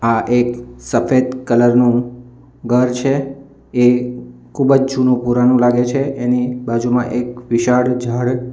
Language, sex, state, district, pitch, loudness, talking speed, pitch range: Gujarati, male, Gujarat, Valsad, 125 Hz, -16 LUFS, 140 wpm, 120-125 Hz